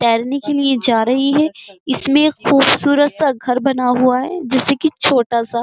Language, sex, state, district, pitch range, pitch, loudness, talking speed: Hindi, female, Uttar Pradesh, Jyotiba Phule Nagar, 245-285 Hz, 270 Hz, -15 LUFS, 180 wpm